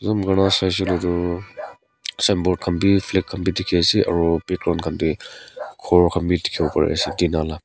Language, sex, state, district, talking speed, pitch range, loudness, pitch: Nagamese, male, Nagaland, Kohima, 195 wpm, 85-95 Hz, -20 LUFS, 90 Hz